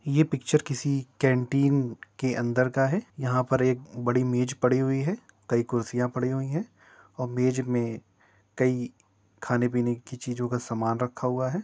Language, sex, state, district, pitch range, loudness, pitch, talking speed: Hindi, male, Uttar Pradesh, Jyotiba Phule Nagar, 120-135 Hz, -27 LUFS, 125 Hz, 165 wpm